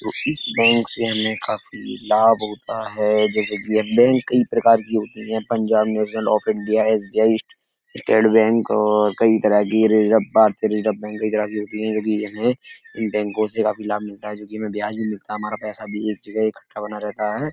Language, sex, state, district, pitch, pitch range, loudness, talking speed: Hindi, male, Uttar Pradesh, Etah, 110 Hz, 105-110 Hz, -20 LUFS, 210 wpm